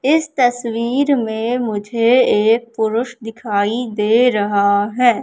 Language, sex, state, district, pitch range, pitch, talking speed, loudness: Hindi, female, Madhya Pradesh, Katni, 215-245 Hz, 230 Hz, 115 wpm, -16 LUFS